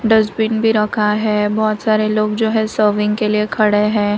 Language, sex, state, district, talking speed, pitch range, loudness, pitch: Hindi, female, Gujarat, Valsad, 215 wpm, 210-220 Hz, -16 LUFS, 215 Hz